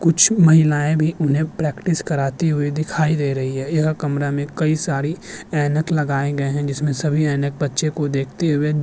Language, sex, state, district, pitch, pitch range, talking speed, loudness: Hindi, male, Uttar Pradesh, Hamirpur, 150 Hz, 145-155 Hz, 190 wpm, -19 LUFS